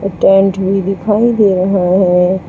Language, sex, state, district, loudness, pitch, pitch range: Hindi, female, Uttar Pradesh, Saharanpur, -12 LUFS, 195 Hz, 185-195 Hz